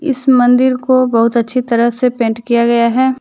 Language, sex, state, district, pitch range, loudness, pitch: Hindi, female, Jharkhand, Deoghar, 235-255 Hz, -12 LUFS, 245 Hz